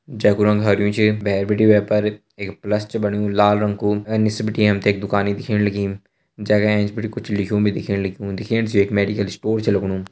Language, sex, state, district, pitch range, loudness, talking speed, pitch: Garhwali, male, Uttarakhand, Uttarkashi, 100-105 Hz, -19 LUFS, 235 wpm, 105 Hz